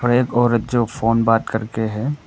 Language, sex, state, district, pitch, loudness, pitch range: Hindi, male, Arunachal Pradesh, Papum Pare, 115 Hz, -19 LUFS, 110-120 Hz